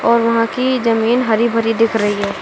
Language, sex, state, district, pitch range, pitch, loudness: Hindi, female, Uttar Pradesh, Lucknow, 225-235 Hz, 230 Hz, -15 LUFS